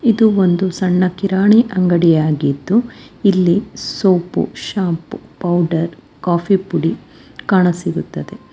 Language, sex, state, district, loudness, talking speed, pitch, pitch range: Kannada, female, Karnataka, Bangalore, -16 LUFS, 90 wpm, 185 Hz, 170-200 Hz